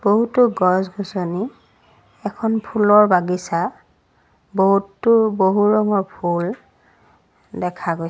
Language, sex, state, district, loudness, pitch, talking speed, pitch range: Assamese, female, Assam, Sonitpur, -18 LUFS, 195 Hz, 90 wpm, 180-215 Hz